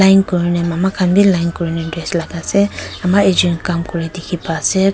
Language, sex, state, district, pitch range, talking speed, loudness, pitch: Nagamese, female, Nagaland, Kohima, 170-190 Hz, 205 wpm, -16 LUFS, 175 Hz